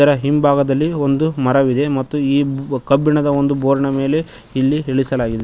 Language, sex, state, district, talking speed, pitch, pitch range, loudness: Kannada, male, Karnataka, Koppal, 120 wpm, 140 Hz, 135-145 Hz, -16 LUFS